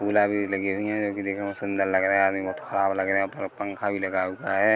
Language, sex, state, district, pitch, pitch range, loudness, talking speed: Hindi, male, Chhattisgarh, Korba, 100 Hz, 95-100 Hz, -26 LUFS, 315 wpm